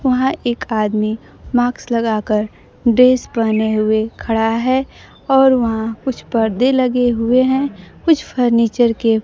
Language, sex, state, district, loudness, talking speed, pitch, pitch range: Hindi, female, Bihar, Kaimur, -16 LUFS, 130 wpm, 235 Hz, 220-255 Hz